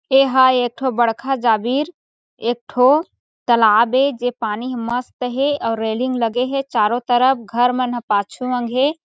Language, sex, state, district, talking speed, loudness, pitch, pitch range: Chhattisgarhi, female, Chhattisgarh, Sarguja, 160 wpm, -18 LUFS, 250 Hz, 235-265 Hz